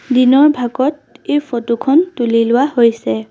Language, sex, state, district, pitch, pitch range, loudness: Assamese, female, Assam, Sonitpur, 250 Hz, 235-285 Hz, -14 LUFS